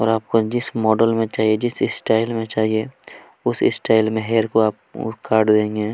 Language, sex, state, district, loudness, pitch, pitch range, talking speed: Hindi, male, Chhattisgarh, Kabirdham, -19 LUFS, 110 Hz, 110-115 Hz, 190 wpm